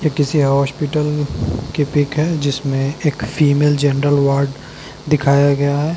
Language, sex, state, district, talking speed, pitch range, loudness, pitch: Hindi, male, Uttar Pradesh, Lalitpur, 140 wpm, 140-150 Hz, -17 LUFS, 145 Hz